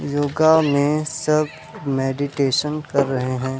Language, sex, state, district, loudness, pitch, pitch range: Chhattisgarhi, male, Chhattisgarh, Rajnandgaon, -20 LUFS, 145 Hz, 135-155 Hz